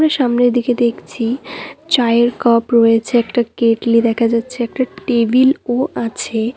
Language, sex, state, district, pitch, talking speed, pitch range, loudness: Bengali, female, West Bengal, Cooch Behar, 240 Hz, 130 wpm, 230-255 Hz, -15 LUFS